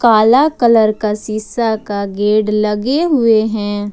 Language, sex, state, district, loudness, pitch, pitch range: Hindi, female, Jharkhand, Ranchi, -14 LUFS, 215 Hz, 210-235 Hz